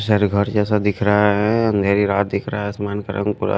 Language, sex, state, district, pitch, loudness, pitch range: Hindi, male, Himachal Pradesh, Shimla, 105 Hz, -19 LUFS, 100-105 Hz